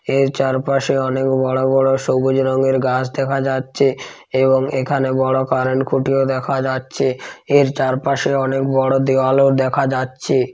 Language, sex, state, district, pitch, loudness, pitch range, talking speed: Bengali, male, West Bengal, Paschim Medinipur, 135 Hz, -17 LUFS, 130-135 Hz, 140 wpm